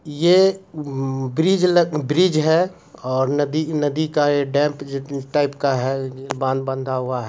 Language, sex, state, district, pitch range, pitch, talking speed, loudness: Hindi, male, Bihar, Supaul, 135-155 Hz, 145 Hz, 130 wpm, -20 LUFS